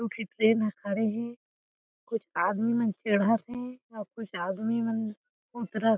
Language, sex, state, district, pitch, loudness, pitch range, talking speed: Chhattisgarhi, female, Chhattisgarh, Jashpur, 225 Hz, -30 LUFS, 215-230 Hz, 160 wpm